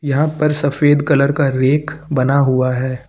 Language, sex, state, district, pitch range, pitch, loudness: Hindi, male, Uttar Pradesh, Lucknow, 130-150 Hz, 140 Hz, -15 LUFS